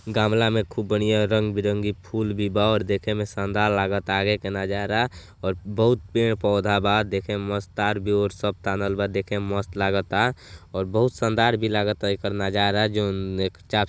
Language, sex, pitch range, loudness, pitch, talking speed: Bhojpuri, male, 100-105 Hz, -24 LUFS, 105 Hz, 195 wpm